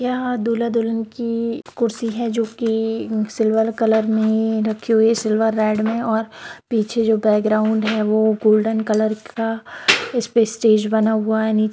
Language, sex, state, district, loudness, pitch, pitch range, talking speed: Hindi, female, Bihar, Darbhanga, -19 LUFS, 220 Hz, 220-230 Hz, 160 wpm